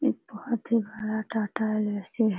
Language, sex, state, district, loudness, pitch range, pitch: Hindi, female, Bihar, Jamui, -29 LUFS, 210-225 Hz, 220 Hz